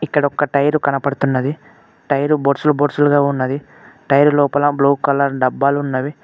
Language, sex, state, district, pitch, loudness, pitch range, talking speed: Telugu, male, Telangana, Mahabubabad, 140 Hz, -16 LUFS, 140-145 Hz, 125 wpm